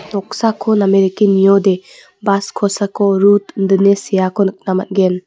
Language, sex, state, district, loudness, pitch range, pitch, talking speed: Garo, female, Meghalaya, West Garo Hills, -14 LUFS, 190-200 Hz, 195 Hz, 125 wpm